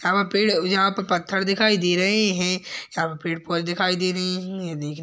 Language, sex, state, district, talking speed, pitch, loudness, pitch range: Hindi, female, Uttar Pradesh, Hamirpur, 250 wpm, 185 Hz, -22 LUFS, 175-195 Hz